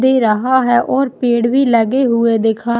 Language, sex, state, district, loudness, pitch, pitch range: Hindi, female, Chhattisgarh, Jashpur, -14 LUFS, 240 Hz, 230-260 Hz